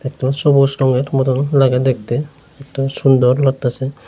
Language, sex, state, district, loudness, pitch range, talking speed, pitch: Bengali, male, Tripura, Unakoti, -15 LUFS, 130-140 Hz, 145 wpm, 135 Hz